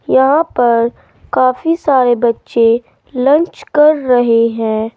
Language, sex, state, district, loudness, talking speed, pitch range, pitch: Hindi, female, Uttar Pradesh, Saharanpur, -13 LUFS, 110 wpm, 230-295 Hz, 250 Hz